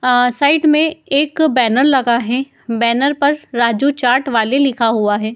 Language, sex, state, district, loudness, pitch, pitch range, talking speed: Hindi, female, Uttar Pradesh, Muzaffarnagar, -14 LUFS, 255 Hz, 235-285 Hz, 170 wpm